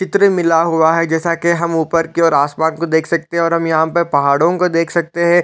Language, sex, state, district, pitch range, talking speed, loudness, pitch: Hindi, male, Chhattisgarh, Raigarh, 160-170 Hz, 275 wpm, -14 LUFS, 165 Hz